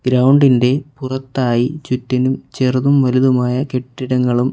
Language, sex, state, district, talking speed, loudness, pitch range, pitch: Malayalam, male, Kerala, Kollam, 95 wpm, -16 LUFS, 125-130 Hz, 130 Hz